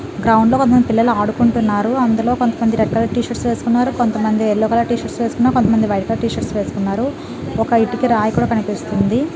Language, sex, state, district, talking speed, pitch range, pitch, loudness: Telugu, female, Telangana, Nalgonda, 230 wpm, 220-245 Hz, 230 Hz, -16 LUFS